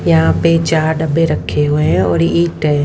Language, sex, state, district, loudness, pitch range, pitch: Hindi, female, Haryana, Rohtak, -14 LUFS, 155-165 Hz, 160 Hz